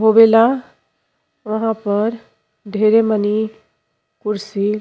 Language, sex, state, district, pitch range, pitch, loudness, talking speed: Bhojpuri, female, Uttar Pradesh, Ghazipur, 210-225 Hz, 215 Hz, -17 LUFS, 75 wpm